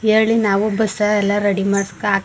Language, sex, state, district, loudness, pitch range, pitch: Kannada, female, Karnataka, Mysore, -17 LUFS, 200-215 Hz, 205 Hz